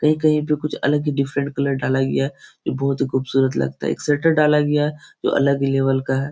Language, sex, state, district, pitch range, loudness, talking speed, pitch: Hindi, male, Bihar, Supaul, 135-150 Hz, -20 LUFS, 255 wpm, 140 Hz